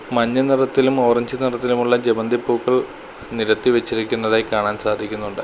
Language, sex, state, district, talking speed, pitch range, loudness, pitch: Malayalam, male, Kerala, Kollam, 110 wpm, 110-125 Hz, -19 LUFS, 120 Hz